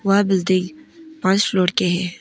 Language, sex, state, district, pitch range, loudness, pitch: Hindi, female, Arunachal Pradesh, Papum Pare, 185-210 Hz, -19 LUFS, 190 Hz